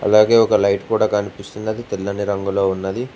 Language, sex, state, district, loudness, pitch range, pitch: Telugu, male, Telangana, Mahabubabad, -18 LUFS, 100-110 Hz, 100 Hz